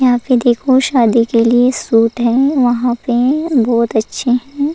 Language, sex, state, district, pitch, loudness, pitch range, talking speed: Hindi, female, Goa, North and South Goa, 245 Hz, -13 LUFS, 235-260 Hz, 165 wpm